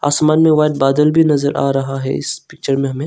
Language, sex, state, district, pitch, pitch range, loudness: Hindi, male, Arunachal Pradesh, Longding, 145 Hz, 135-155 Hz, -15 LUFS